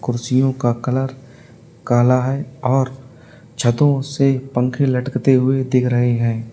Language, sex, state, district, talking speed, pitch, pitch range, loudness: Hindi, male, Uttar Pradesh, Lalitpur, 130 wpm, 130 Hz, 120-135 Hz, -18 LUFS